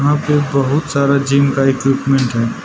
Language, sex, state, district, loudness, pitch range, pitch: Hindi, male, Arunachal Pradesh, Lower Dibang Valley, -15 LUFS, 135-145 Hz, 140 Hz